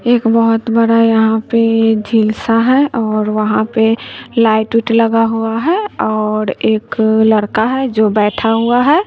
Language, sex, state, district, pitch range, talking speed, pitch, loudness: Hindi, male, Bihar, West Champaran, 220-230 Hz, 160 wpm, 225 Hz, -13 LUFS